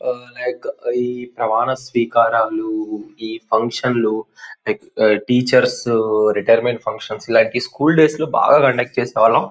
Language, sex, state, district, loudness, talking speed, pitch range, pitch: Telugu, male, Andhra Pradesh, Guntur, -17 LUFS, 115 wpm, 115-130 Hz, 125 Hz